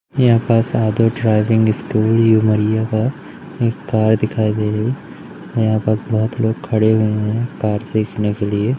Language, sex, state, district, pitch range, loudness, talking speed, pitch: Hindi, male, Madhya Pradesh, Umaria, 110-115 Hz, -17 LUFS, 155 wpm, 110 Hz